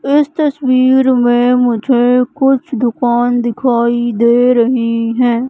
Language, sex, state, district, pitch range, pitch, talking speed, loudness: Hindi, female, Madhya Pradesh, Katni, 240-260 Hz, 245 Hz, 110 wpm, -12 LUFS